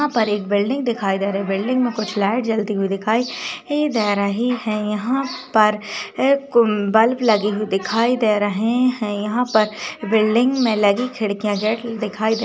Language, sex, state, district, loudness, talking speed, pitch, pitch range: Hindi, female, Maharashtra, Nagpur, -19 LUFS, 175 wpm, 220 Hz, 205-240 Hz